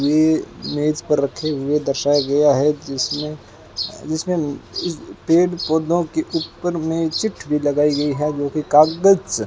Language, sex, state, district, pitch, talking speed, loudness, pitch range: Hindi, male, Rajasthan, Bikaner, 150 Hz, 135 wpm, -19 LUFS, 145-165 Hz